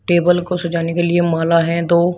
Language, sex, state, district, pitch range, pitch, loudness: Hindi, male, Uttar Pradesh, Shamli, 170-175 Hz, 170 Hz, -16 LUFS